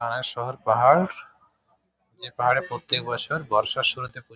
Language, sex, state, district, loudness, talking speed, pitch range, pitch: Bengali, male, West Bengal, Jhargram, -23 LUFS, 125 wpm, 115-130 Hz, 125 Hz